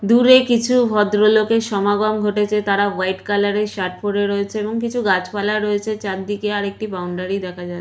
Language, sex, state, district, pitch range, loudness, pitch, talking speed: Bengali, female, West Bengal, Purulia, 200-215 Hz, -18 LUFS, 205 Hz, 160 wpm